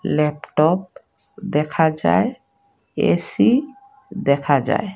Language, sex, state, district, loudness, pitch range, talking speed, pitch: Bengali, female, Assam, Hailakandi, -19 LUFS, 150-215 Hz, 75 wpm, 160 Hz